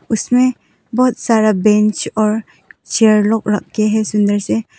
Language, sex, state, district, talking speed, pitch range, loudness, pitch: Hindi, female, Arunachal Pradesh, Papum Pare, 150 wpm, 210-225 Hz, -15 LUFS, 215 Hz